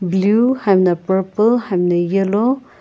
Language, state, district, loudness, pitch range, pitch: Sumi, Nagaland, Kohima, -16 LUFS, 185-230 Hz, 195 Hz